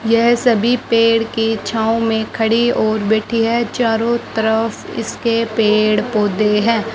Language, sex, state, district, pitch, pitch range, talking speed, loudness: Hindi, male, Rajasthan, Bikaner, 225 Hz, 220-230 Hz, 130 wpm, -16 LUFS